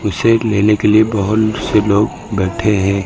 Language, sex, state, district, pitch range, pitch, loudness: Hindi, male, Uttar Pradesh, Lucknow, 100-110 Hz, 105 Hz, -14 LUFS